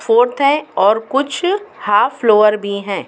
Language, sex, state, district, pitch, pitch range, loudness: Hindi, female, Uttar Pradesh, Muzaffarnagar, 240 Hz, 210-285 Hz, -15 LUFS